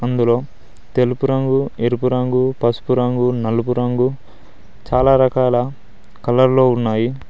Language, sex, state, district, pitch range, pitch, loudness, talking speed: Telugu, male, Telangana, Mahabubabad, 120-130 Hz, 125 Hz, -17 LUFS, 105 wpm